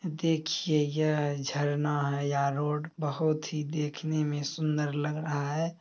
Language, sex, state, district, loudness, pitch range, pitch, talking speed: Maithili, male, Bihar, Samastipur, -30 LUFS, 145-155 Hz, 150 Hz, 145 wpm